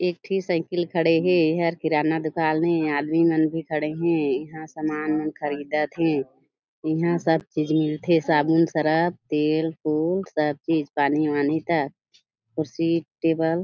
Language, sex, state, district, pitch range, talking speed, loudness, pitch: Chhattisgarhi, female, Chhattisgarh, Jashpur, 155-165 Hz, 150 wpm, -23 LUFS, 160 Hz